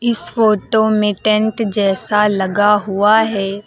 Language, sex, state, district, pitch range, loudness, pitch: Hindi, female, Uttar Pradesh, Lucknow, 200-220 Hz, -15 LUFS, 210 Hz